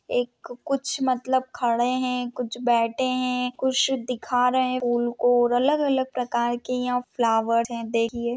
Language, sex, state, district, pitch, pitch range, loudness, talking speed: Hindi, female, Maharashtra, Pune, 245 Hz, 240-255 Hz, -24 LUFS, 160 wpm